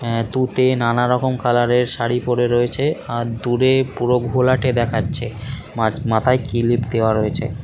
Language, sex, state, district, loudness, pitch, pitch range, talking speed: Bengali, male, West Bengal, Kolkata, -18 LUFS, 120 Hz, 115-130 Hz, 150 wpm